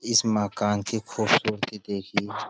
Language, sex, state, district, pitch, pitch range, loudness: Hindi, male, Uttar Pradesh, Budaun, 105 Hz, 100-110 Hz, -26 LUFS